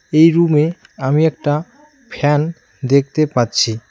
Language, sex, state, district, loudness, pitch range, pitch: Bengali, male, West Bengal, Cooch Behar, -16 LUFS, 135-165 Hz, 150 Hz